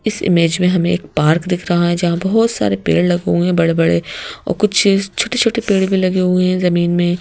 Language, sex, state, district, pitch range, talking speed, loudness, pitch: Hindi, female, Madhya Pradesh, Bhopal, 175-195 Hz, 235 wpm, -15 LUFS, 180 Hz